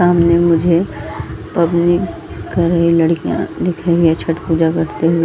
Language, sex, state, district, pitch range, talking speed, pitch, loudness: Hindi, female, Chhattisgarh, Balrampur, 165-170 Hz, 160 wpm, 170 Hz, -15 LUFS